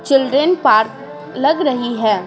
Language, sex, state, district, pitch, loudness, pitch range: Hindi, female, Bihar, Patna, 245 Hz, -15 LUFS, 215-280 Hz